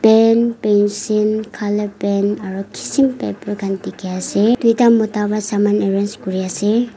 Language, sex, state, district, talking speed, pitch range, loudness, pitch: Nagamese, female, Nagaland, Kohima, 145 wpm, 200-225 Hz, -17 LUFS, 210 Hz